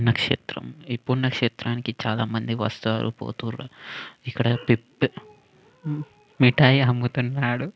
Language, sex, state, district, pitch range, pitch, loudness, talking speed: Telugu, male, Telangana, Karimnagar, 115-135 Hz, 120 Hz, -24 LUFS, 95 wpm